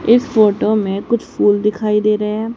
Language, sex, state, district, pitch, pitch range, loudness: Hindi, female, Haryana, Charkhi Dadri, 215 Hz, 210-220 Hz, -15 LUFS